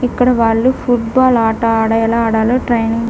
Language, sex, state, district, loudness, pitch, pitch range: Telugu, female, Andhra Pradesh, Krishna, -13 LUFS, 230 Hz, 225-250 Hz